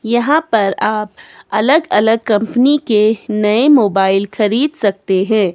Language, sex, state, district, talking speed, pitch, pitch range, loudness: Hindi, female, Himachal Pradesh, Shimla, 130 wpm, 215 Hz, 210-240 Hz, -14 LUFS